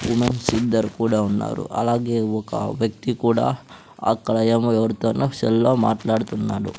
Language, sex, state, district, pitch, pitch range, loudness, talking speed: Telugu, female, Andhra Pradesh, Sri Satya Sai, 115 Hz, 110-120 Hz, -21 LUFS, 115 wpm